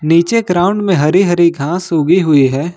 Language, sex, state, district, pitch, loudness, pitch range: Hindi, male, Jharkhand, Ranchi, 170 Hz, -12 LUFS, 155-185 Hz